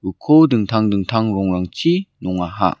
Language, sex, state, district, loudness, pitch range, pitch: Garo, male, Meghalaya, West Garo Hills, -17 LUFS, 90-115 Hz, 100 Hz